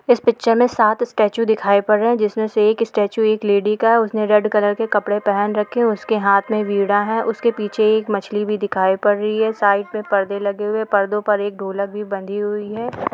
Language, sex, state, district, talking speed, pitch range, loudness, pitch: Hindi, female, Jharkhand, Jamtara, 230 wpm, 205-220 Hz, -18 LUFS, 210 Hz